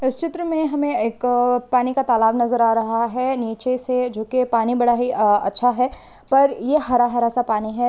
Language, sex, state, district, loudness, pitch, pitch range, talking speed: Hindi, female, Maharashtra, Solapur, -19 LUFS, 245 Hz, 230-255 Hz, 230 wpm